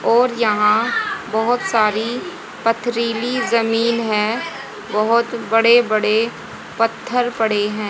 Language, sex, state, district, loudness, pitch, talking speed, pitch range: Hindi, female, Haryana, Jhajjar, -18 LUFS, 230 Hz, 100 wpm, 215-235 Hz